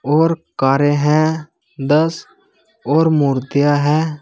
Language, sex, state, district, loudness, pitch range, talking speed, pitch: Hindi, male, Uttar Pradesh, Saharanpur, -16 LUFS, 140-160 Hz, 100 wpm, 150 Hz